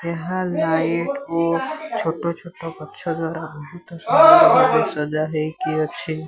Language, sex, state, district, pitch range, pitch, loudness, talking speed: Odia, male, Odisha, Sambalpur, 160-185 Hz, 165 Hz, -19 LUFS, 105 wpm